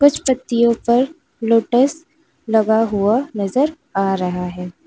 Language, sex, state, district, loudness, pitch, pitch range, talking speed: Hindi, female, Uttar Pradesh, Lalitpur, -18 LUFS, 235 Hz, 205-280 Hz, 125 wpm